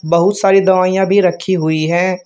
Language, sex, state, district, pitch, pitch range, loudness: Hindi, male, Uttar Pradesh, Shamli, 185 Hz, 170-190 Hz, -13 LUFS